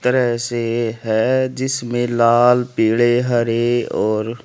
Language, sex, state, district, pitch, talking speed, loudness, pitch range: Hindi, male, Haryana, Rohtak, 120 Hz, 110 wpm, -17 LUFS, 115-125 Hz